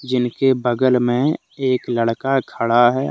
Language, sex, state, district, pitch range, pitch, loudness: Hindi, male, Jharkhand, Deoghar, 120-135 Hz, 125 Hz, -18 LUFS